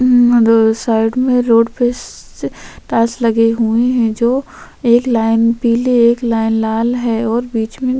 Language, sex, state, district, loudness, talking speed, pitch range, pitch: Hindi, female, Chhattisgarh, Korba, -14 LUFS, 145 wpm, 225-245 Hz, 235 Hz